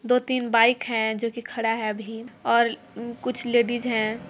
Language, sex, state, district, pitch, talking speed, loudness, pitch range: Hindi, female, Jharkhand, Jamtara, 235 Hz, 165 wpm, -24 LUFS, 225-245 Hz